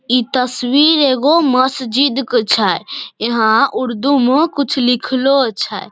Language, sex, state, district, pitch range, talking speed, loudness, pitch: Maithili, female, Bihar, Samastipur, 235-275 Hz, 120 wpm, -14 LUFS, 255 Hz